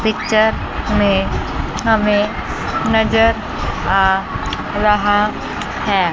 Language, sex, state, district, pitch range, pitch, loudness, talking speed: Hindi, female, Chandigarh, Chandigarh, 205-220 Hz, 210 Hz, -16 LUFS, 70 wpm